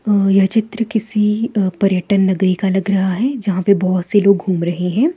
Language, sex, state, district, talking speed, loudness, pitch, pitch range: Hindi, female, Himachal Pradesh, Shimla, 200 wpm, -16 LUFS, 195 Hz, 190-215 Hz